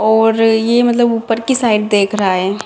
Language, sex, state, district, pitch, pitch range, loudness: Hindi, female, Bihar, Madhepura, 225 Hz, 210-235 Hz, -13 LUFS